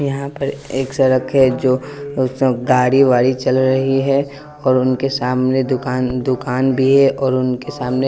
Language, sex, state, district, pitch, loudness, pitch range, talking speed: Hindi, male, Bihar, West Champaran, 130 Hz, -16 LUFS, 130-135 Hz, 155 wpm